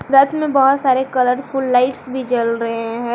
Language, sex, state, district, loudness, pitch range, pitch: Hindi, female, Jharkhand, Garhwa, -17 LUFS, 240-270 Hz, 260 Hz